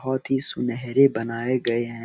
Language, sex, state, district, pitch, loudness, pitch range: Hindi, male, Bihar, Araria, 125 Hz, -23 LUFS, 115-130 Hz